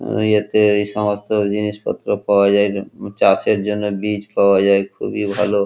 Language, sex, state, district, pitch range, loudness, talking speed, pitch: Bengali, male, West Bengal, Kolkata, 100-105 Hz, -17 LUFS, 150 wpm, 105 Hz